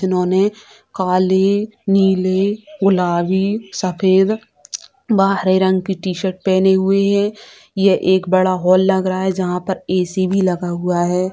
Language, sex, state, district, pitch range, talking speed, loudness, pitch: Hindi, female, Bihar, Sitamarhi, 185-195 Hz, 145 wpm, -16 LUFS, 190 Hz